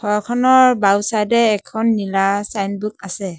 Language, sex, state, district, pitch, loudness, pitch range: Assamese, male, Assam, Sonitpur, 210 Hz, -17 LUFS, 200-225 Hz